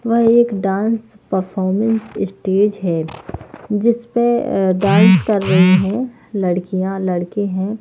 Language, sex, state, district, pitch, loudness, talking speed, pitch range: Hindi, female, Haryana, Jhajjar, 195 Hz, -16 LUFS, 115 wpm, 190-225 Hz